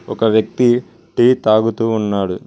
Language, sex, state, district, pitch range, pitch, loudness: Telugu, male, Telangana, Mahabubabad, 110-120 Hz, 110 Hz, -15 LUFS